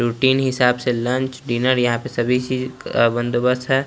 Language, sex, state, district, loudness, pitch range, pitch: Hindi, male, Chandigarh, Chandigarh, -19 LUFS, 120-130 Hz, 125 Hz